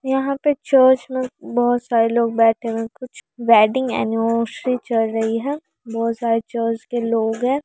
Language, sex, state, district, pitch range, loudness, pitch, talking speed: Hindi, female, Bihar, Araria, 230-255 Hz, -19 LUFS, 235 Hz, 180 wpm